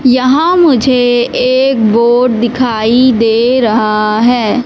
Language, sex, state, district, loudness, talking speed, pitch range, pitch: Hindi, female, Madhya Pradesh, Katni, -10 LUFS, 105 wpm, 225-255 Hz, 245 Hz